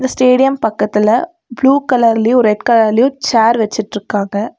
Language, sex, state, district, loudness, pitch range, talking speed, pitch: Tamil, female, Tamil Nadu, Nilgiris, -13 LUFS, 215-260 Hz, 105 wpm, 230 Hz